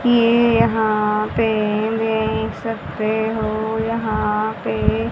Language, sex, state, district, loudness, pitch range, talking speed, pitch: Hindi, female, Haryana, Charkhi Dadri, -19 LUFS, 215-225 Hz, 95 wpm, 220 Hz